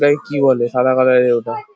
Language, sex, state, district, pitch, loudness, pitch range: Bengali, male, West Bengal, Paschim Medinipur, 130 Hz, -15 LUFS, 125-145 Hz